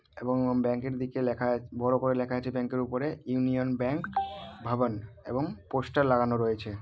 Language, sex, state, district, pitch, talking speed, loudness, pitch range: Bengali, male, West Bengal, Malda, 125 Hz, 175 wpm, -30 LUFS, 120-130 Hz